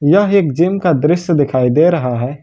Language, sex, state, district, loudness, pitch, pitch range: Hindi, male, Jharkhand, Ranchi, -13 LUFS, 155 Hz, 140-175 Hz